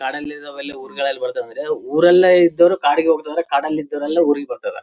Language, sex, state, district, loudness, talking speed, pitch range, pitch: Kannada, male, Karnataka, Bellary, -17 LUFS, 160 wpm, 145-180 Hz, 165 Hz